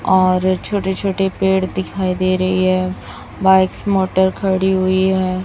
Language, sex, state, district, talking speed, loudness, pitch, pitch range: Hindi, male, Chhattisgarh, Raipur, 145 wpm, -16 LUFS, 190 Hz, 185-190 Hz